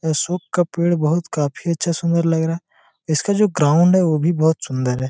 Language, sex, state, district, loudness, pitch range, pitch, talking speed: Hindi, male, Jharkhand, Jamtara, -18 LUFS, 155-175 Hz, 170 Hz, 235 wpm